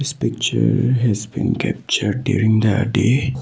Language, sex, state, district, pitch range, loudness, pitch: English, male, Assam, Sonitpur, 110-130 Hz, -18 LUFS, 120 Hz